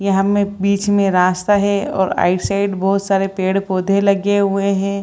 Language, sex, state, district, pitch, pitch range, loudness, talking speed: Hindi, female, Bihar, Lakhisarai, 195 Hz, 195-200 Hz, -16 LUFS, 190 wpm